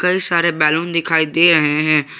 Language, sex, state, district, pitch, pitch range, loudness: Hindi, male, Jharkhand, Garhwa, 165 Hz, 155-170 Hz, -14 LUFS